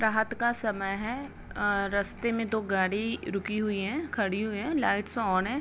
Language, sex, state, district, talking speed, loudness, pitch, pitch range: Hindi, female, Bihar, Vaishali, 190 wpm, -30 LUFS, 215 Hz, 200-230 Hz